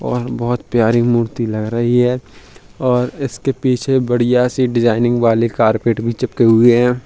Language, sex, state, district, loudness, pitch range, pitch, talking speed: Hindi, male, Uttar Pradesh, Hamirpur, -15 LUFS, 115-125 Hz, 120 Hz, 160 wpm